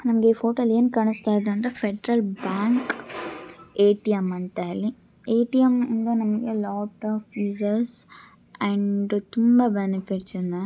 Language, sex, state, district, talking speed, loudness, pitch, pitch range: Kannada, female, Karnataka, Shimoga, 130 wpm, -24 LUFS, 215 Hz, 200-230 Hz